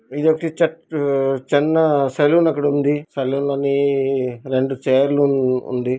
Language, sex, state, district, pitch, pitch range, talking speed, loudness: Telugu, male, Andhra Pradesh, Visakhapatnam, 140 Hz, 135-150 Hz, 110 wpm, -18 LUFS